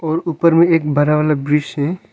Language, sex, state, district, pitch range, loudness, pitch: Hindi, male, Arunachal Pradesh, Longding, 150-165 Hz, -15 LUFS, 155 Hz